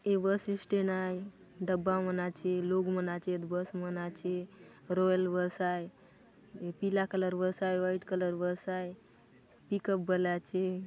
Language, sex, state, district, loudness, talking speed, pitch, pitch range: Halbi, female, Chhattisgarh, Bastar, -34 LUFS, 145 wpm, 185 Hz, 180-190 Hz